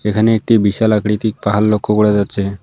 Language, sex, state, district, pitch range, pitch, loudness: Bengali, male, West Bengal, Alipurduar, 105-110 Hz, 105 Hz, -14 LUFS